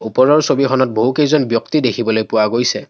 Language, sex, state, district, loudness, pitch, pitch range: Assamese, male, Assam, Kamrup Metropolitan, -15 LUFS, 125 Hz, 110-145 Hz